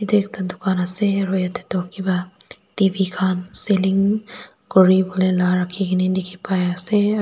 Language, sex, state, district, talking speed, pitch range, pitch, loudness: Nagamese, female, Nagaland, Dimapur, 125 wpm, 185-200 Hz, 190 Hz, -20 LUFS